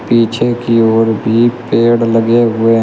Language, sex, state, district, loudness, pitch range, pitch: Hindi, male, Uttar Pradesh, Shamli, -12 LUFS, 115-120 Hz, 115 Hz